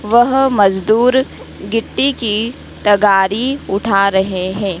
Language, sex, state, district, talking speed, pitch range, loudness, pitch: Hindi, female, Madhya Pradesh, Dhar, 100 wpm, 195-240 Hz, -14 LUFS, 210 Hz